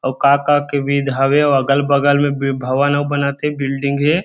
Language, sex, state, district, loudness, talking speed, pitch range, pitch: Chhattisgarhi, male, Chhattisgarh, Rajnandgaon, -16 LUFS, 195 wpm, 135-145 Hz, 140 Hz